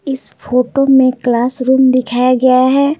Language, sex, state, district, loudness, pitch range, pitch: Hindi, female, Bihar, Patna, -12 LUFS, 250-265 Hz, 255 Hz